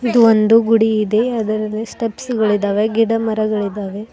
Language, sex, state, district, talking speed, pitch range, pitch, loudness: Kannada, female, Karnataka, Bidar, 115 wpm, 210-225 Hz, 220 Hz, -16 LUFS